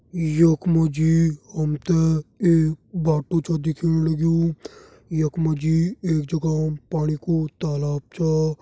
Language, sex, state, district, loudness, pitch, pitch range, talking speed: Garhwali, male, Uttarakhand, Uttarkashi, -22 LUFS, 160 Hz, 155-165 Hz, 130 wpm